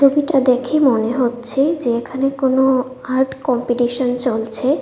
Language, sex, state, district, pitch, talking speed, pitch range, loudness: Bengali, female, Tripura, West Tripura, 255 Hz, 125 wpm, 245-270 Hz, -17 LUFS